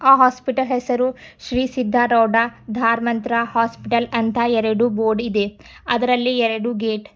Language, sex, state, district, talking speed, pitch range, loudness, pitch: Kannada, female, Karnataka, Bidar, 135 wpm, 230-250 Hz, -19 LUFS, 235 Hz